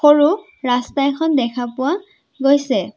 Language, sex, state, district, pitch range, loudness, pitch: Assamese, female, Assam, Sonitpur, 260-310 Hz, -18 LUFS, 285 Hz